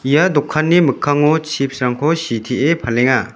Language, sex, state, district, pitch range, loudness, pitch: Garo, male, Meghalaya, West Garo Hills, 125-155 Hz, -16 LUFS, 145 Hz